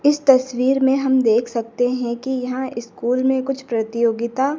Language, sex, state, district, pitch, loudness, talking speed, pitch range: Hindi, female, Madhya Pradesh, Dhar, 255 Hz, -19 LUFS, 170 wpm, 235-265 Hz